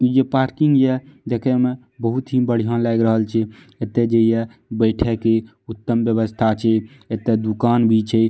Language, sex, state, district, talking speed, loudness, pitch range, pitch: Maithili, male, Bihar, Madhepura, 175 wpm, -19 LUFS, 110-125 Hz, 115 Hz